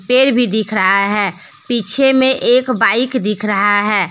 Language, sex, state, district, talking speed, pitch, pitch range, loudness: Hindi, female, Jharkhand, Deoghar, 175 wpm, 220 Hz, 205-255 Hz, -13 LUFS